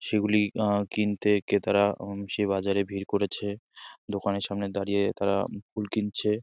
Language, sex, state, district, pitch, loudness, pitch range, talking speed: Bengali, male, West Bengal, Jalpaiguri, 100 Hz, -28 LUFS, 100-105 Hz, 140 wpm